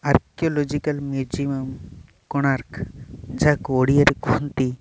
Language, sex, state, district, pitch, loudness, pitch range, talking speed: Odia, male, Odisha, Nuapada, 140 Hz, -22 LUFS, 130-145 Hz, 100 wpm